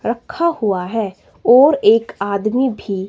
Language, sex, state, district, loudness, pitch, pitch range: Hindi, female, Himachal Pradesh, Shimla, -16 LUFS, 225 Hz, 200-260 Hz